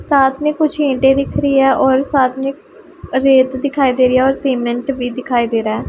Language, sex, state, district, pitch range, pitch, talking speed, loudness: Hindi, female, Punjab, Pathankot, 255-275 Hz, 270 Hz, 225 wpm, -15 LUFS